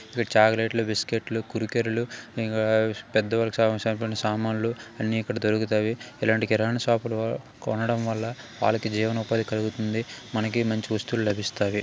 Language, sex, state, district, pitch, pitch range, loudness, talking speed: Telugu, male, Telangana, Karimnagar, 110 Hz, 110-115 Hz, -26 LUFS, 145 wpm